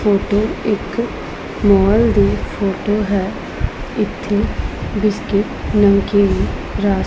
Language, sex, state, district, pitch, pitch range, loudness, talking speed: Punjabi, female, Punjab, Pathankot, 205 Hz, 200-210 Hz, -17 LUFS, 85 wpm